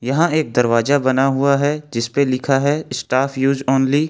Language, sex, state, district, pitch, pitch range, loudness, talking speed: Hindi, male, Jharkhand, Ranchi, 135 Hz, 130-145 Hz, -17 LUFS, 205 wpm